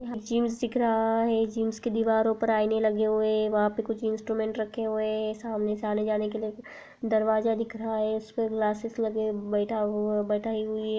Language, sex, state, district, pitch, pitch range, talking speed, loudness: Hindi, female, Uttar Pradesh, Jalaun, 220 Hz, 215-225 Hz, 195 wpm, -28 LUFS